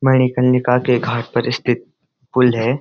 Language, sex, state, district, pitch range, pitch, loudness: Hindi, male, Uttarakhand, Uttarkashi, 120-130 Hz, 125 Hz, -17 LUFS